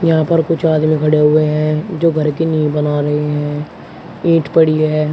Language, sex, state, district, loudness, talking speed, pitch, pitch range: Hindi, male, Uttar Pradesh, Shamli, -14 LUFS, 200 wpm, 155 Hz, 150-160 Hz